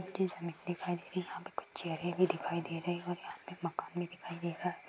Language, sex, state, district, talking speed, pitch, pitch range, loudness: Hindi, female, Bihar, Gopalganj, 295 wpm, 175 Hz, 170-180 Hz, -38 LUFS